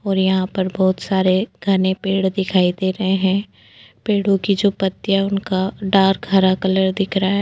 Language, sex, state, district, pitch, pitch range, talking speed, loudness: Hindi, female, Goa, North and South Goa, 190 Hz, 190-195 Hz, 180 wpm, -18 LUFS